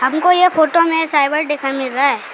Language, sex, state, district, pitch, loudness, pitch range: Hindi, female, Arunachal Pradesh, Lower Dibang Valley, 300 Hz, -14 LUFS, 280-325 Hz